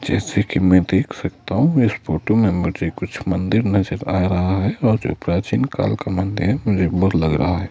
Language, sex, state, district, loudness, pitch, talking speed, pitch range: Hindi, male, Madhya Pradesh, Bhopal, -19 LUFS, 95 Hz, 195 wpm, 90-110 Hz